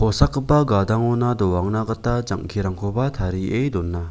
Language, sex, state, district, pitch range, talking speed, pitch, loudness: Garo, male, Meghalaya, West Garo Hills, 95-120 Hz, 85 wpm, 110 Hz, -21 LUFS